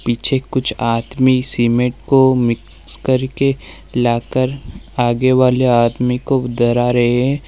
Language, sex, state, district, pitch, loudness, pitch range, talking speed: Hindi, male, Uttar Pradesh, Lalitpur, 125 Hz, -16 LUFS, 120-130 Hz, 120 wpm